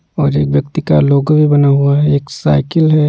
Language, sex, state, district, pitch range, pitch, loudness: Hindi, male, Bihar, Kaimur, 120-150 Hz, 140 Hz, -12 LUFS